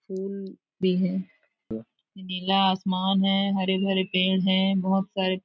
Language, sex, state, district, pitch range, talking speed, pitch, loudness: Hindi, female, Chhattisgarh, Raigarh, 185-195 Hz, 120 wpm, 190 Hz, -25 LUFS